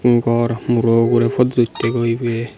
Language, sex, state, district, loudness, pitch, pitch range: Chakma, male, Tripura, Unakoti, -17 LUFS, 120 Hz, 115-120 Hz